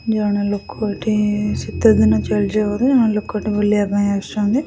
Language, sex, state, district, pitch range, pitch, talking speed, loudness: Odia, female, Odisha, Khordha, 200-215 Hz, 210 Hz, 140 wpm, -18 LUFS